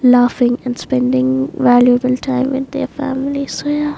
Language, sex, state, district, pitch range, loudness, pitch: English, female, Maharashtra, Mumbai Suburban, 245-275 Hz, -15 LUFS, 255 Hz